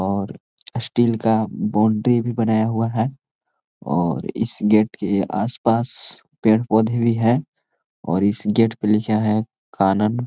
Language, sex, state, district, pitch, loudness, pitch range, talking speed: Hindi, male, Chhattisgarh, Korba, 110 Hz, -20 LUFS, 105-115 Hz, 135 wpm